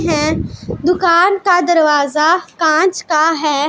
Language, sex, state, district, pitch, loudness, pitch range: Hindi, female, Punjab, Pathankot, 330 Hz, -13 LUFS, 305-355 Hz